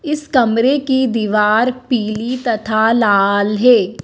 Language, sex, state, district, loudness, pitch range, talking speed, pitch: Hindi, female, Madhya Pradesh, Dhar, -15 LUFS, 215-255 Hz, 120 wpm, 230 Hz